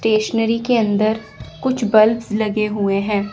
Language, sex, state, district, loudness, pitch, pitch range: Hindi, female, Chandigarh, Chandigarh, -18 LUFS, 215 Hz, 210-225 Hz